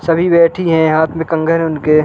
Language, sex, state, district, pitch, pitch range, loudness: Hindi, male, Uttarakhand, Uttarkashi, 165 Hz, 160-165 Hz, -13 LUFS